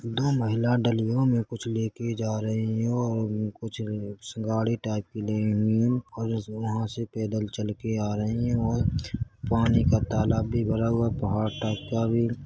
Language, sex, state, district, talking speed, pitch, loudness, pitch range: Hindi, male, Chhattisgarh, Korba, 195 wpm, 110 Hz, -27 LUFS, 110-115 Hz